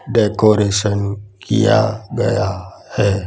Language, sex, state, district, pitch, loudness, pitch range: Hindi, male, Gujarat, Gandhinagar, 105 Hz, -17 LUFS, 100-115 Hz